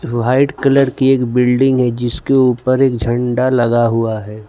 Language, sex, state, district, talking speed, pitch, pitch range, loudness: Hindi, male, Gujarat, Valsad, 175 wpm, 125 Hz, 120-130 Hz, -14 LUFS